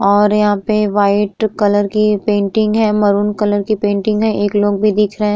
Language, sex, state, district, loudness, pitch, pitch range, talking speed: Hindi, female, Uttar Pradesh, Muzaffarnagar, -14 LUFS, 210 Hz, 205-215 Hz, 215 wpm